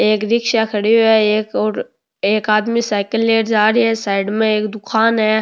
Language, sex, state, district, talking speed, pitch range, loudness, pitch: Rajasthani, male, Rajasthan, Nagaur, 200 wpm, 215-225 Hz, -16 LUFS, 215 Hz